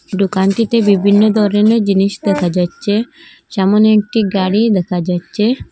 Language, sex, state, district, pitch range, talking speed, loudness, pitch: Bengali, female, Assam, Hailakandi, 190-220 Hz, 115 wpm, -13 LUFS, 205 Hz